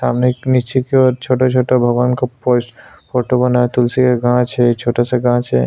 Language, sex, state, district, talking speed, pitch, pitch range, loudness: Hindi, male, Chhattisgarh, Sukma, 210 wpm, 125 Hz, 120-125 Hz, -15 LUFS